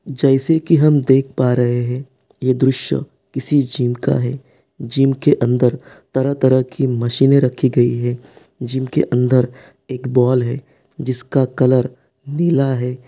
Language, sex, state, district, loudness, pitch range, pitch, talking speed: Hindi, male, Bihar, Sitamarhi, -17 LUFS, 125-135 Hz, 130 Hz, 145 wpm